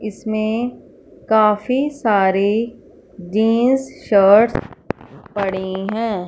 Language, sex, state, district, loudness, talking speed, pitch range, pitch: Hindi, female, Punjab, Fazilka, -17 LUFS, 65 wpm, 200-230 Hz, 215 Hz